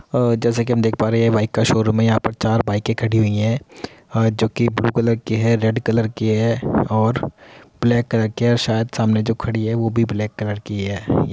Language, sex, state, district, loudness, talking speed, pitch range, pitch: Hindi, male, Uttar Pradesh, Muzaffarnagar, -19 LUFS, 245 wpm, 110-115 Hz, 115 Hz